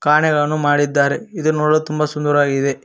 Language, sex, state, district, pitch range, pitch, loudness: Kannada, male, Karnataka, Koppal, 145-155 Hz, 150 Hz, -17 LUFS